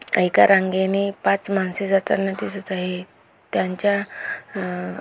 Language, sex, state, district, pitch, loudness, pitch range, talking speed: Marathi, female, Maharashtra, Aurangabad, 195 Hz, -21 LUFS, 185-195 Hz, 110 wpm